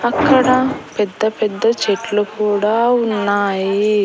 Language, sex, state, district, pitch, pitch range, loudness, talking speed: Telugu, female, Andhra Pradesh, Annamaya, 215 Hz, 205-240 Hz, -16 LUFS, 90 wpm